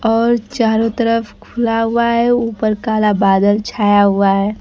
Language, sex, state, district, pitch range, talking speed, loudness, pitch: Hindi, female, Bihar, Kaimur, 205-235 Hz, 155 wpm, -15 LUFS, 225 Hz